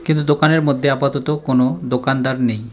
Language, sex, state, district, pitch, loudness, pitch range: Bengali, male, West Bengal, Cooch Behar, 135 Hz, -17 LUFS, 125-150 Hz